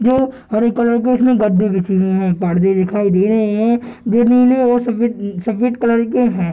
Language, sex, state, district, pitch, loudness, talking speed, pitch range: Hindi, male, Bihar, Darbhanga, 230 Hz, -15 LUFS, 220 wpm, 195-240 Hz